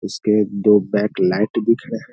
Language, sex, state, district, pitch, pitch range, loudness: Hindi, male, Bihar, Darbhanga, 105 Hz, 100-105 Hz, -18 LUFS